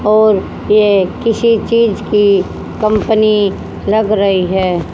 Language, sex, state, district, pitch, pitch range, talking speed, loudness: Hindi, female, Haryana, Charkhi Dadri, 210 Hz, 195-215 Hz, 110 wpm, -13 LUFS